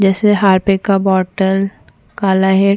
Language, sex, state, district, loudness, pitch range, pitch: Hindi, female, Chhattisgarh, Bastar, -14 LUFS, 190-195 Hz, 195 Hz